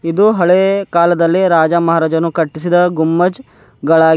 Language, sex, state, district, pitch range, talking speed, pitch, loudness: Kannada, female, Karnataka, Bidar, 165-180 Hz, 115 wpm, 170 Hz, -13 LUFS